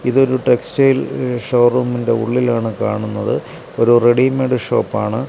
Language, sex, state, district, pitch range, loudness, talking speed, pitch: Malayalam, male, Kerala, Kasaragod, 115-125 Hz, -16 LUFS, 100 wpm, 120 Hz